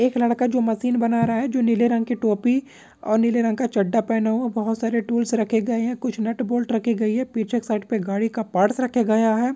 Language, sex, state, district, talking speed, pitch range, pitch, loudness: Hindi, male, Jharkhand, Sahebganj, 265 wpm, 225-240 Hz, 230 Hz, -22 LUFS